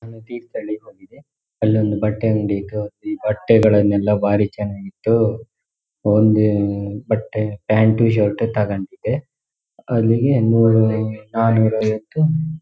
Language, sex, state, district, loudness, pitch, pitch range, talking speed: Kannada, male, Karnataka, Shimoga, -18 LUFS, 110 Hz, 105-115 Hz, 105 wpm